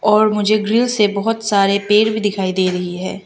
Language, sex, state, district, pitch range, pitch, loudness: Hindi, female, Arunachal Pradesh, Lower Dibang Valley, 195-215 Hz, 205 Hz, -16 LUFS